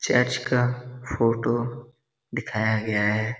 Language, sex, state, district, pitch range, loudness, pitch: Hindi, male, Bihar, Darbhanga, 110-125 Hz, -25 LUFS, 120 Hz